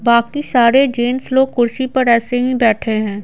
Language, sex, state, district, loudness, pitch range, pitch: Hindi, female, Bihar, Patna, -15 LUFS, 235-260 Hz, 240 Hz